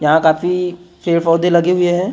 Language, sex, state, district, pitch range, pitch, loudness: Hindi, male, Maharashtra, Gondia, 165-180 Hz, 175 Hz, -15 LUFS